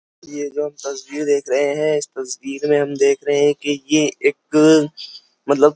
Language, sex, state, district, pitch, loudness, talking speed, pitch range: Hindi, male, Uttar Pradesh, Jyotiba Phule Nagar, 145 Hz, -18 LUFS, 190 wpm, 140-150 Hz